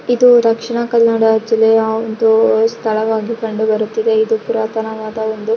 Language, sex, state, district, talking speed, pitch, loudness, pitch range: Kannada, female, Karnataka, Dakshina Kannada, 120 wpm, 225 Hz, -14 LUFS, 220-230 Hz